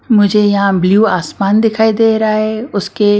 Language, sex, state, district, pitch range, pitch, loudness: Hindi, female, Maharashtra, Washim, 200-220 Hz, 210 Hz, -12 LUFS